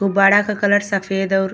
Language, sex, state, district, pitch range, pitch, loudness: Bhojpuri, female, Uttar Pradesh, Gorakhpur, 195-205 Hz, 200 Hz, -16 LUFS